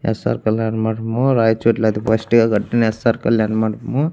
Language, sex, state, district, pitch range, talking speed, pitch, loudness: Telugu, male, Andhra Pradesh, Annamaya, 110-115 Hz, 145 wpm, 110 Hz, -17 LUFS